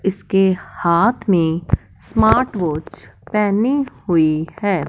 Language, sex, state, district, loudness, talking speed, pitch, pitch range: Hindi, male, Punjab, Fazilka, -18 LUFS, 100 wpm, 175 Hz, 155-205 Hz